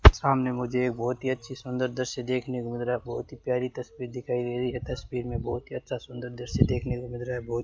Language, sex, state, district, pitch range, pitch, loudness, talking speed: Hindi, male, Rajasthan, Bikaner, 120-125 Hz, 125 Hz, -30 LUFS, 265 wpm